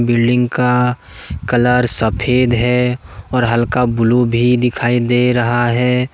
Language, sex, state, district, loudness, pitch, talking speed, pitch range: Hindi, male, Jharkhand, Deoghar, -14 LUFS, 120 Hz, 125 wpm, 120-125 Hz